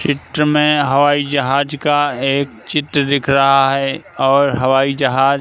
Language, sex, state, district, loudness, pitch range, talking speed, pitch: Hindi, male, Madhya Pradesh, Katni, -15 LUFS, 135-145 Hz, 145 wpm, 140 Hz